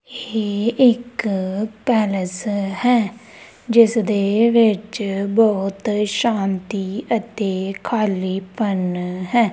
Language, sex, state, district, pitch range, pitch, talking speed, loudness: Punjabi, female, Punjab, Kapurthala, 195-230 Hz, 210 Hz, 70 wpm, -19 LUFS